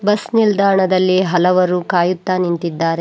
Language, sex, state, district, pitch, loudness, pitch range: Kannada, female, Karnataka, Bangalore, 185 Hz, -15 LUFS, 175-195 Hz